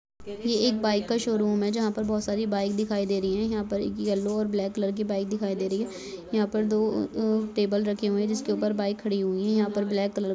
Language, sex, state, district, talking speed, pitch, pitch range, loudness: Hindi, male, Rajasthan, Churu, 270 wpm, 205 Hz, 200-215 Hz, -27 LUFS